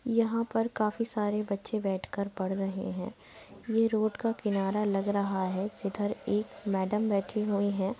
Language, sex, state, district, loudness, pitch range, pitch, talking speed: Hindi, female, Uttar Pradesh, Muzaffarnagar, -31 LUFS, 195-220 Hz, 205 Hz, 170 wpm